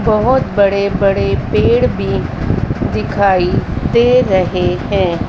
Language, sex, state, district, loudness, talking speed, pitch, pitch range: Hindi, female, Madhya Pradesh, Dhar, -14 LUFS, 100 wpm, 195 Hz, 185-200 Hz